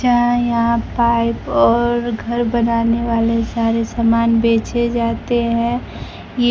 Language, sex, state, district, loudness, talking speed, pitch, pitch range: Hindi, male, Bihar, Kaimur, -17 LUFS, 120 wpm, 235 Hz, 230-240 Hz